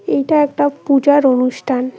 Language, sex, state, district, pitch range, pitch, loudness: Bengali, female, West Bengal, Cooch Behar, 260-290 Hz, 280 Hz, -14 LUFS